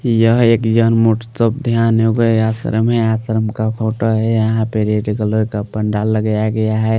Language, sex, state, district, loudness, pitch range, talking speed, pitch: Hindi, male, Delhi, New Delhi, -15 LUFS, 110-115 Hz, 180 wpm, 110 Hz